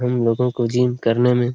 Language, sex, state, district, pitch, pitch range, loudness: Hindi, male, Jharkhand, Sahebganj, 125 Hz, 120-125 Hz, -19 LUFS